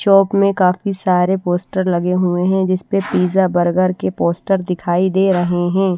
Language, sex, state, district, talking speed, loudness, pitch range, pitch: Hindi, female, Haryana, Rohtak, 180 wpm, -16 LUFS, 180-195 Hz, 185 Hz